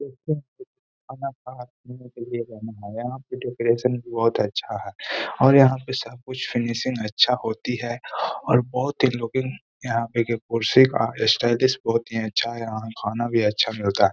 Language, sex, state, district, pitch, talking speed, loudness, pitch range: Hindi, male, Bihar, Gaya, 120 Hz, 150 wpm, -23 LUFS, 115-130 Hz